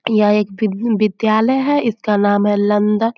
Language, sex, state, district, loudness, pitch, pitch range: Hindi, female, Bihar, Muzaffarpur, -16 LUFS, 215 Hz, 210-225 Hz